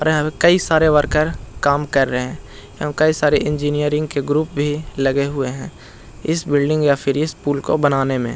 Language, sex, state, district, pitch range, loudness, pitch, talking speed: Hindi, male, Bihar, Jahanabad, 140-155 Hz, -18 LUFS, 145 Hz, 185 wpm